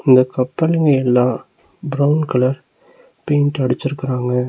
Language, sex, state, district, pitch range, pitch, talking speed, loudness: Tamil, male, Tamil Nadu, Nilgiris, 125-150 Hz, 135 Hz, 95 wpm, -17 LUFS